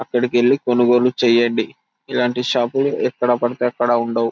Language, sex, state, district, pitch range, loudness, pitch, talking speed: Telugu, male, Telangana, Karimnagar, 120-125 Hz, -18 LUFS, 120 Hz, 125 wpm